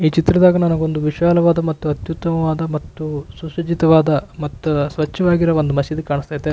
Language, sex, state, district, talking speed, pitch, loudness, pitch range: Kannada, male, Karnataka, Raichur, 140 wpm, 160 Hz, -17 LUFS, 150-170 Hz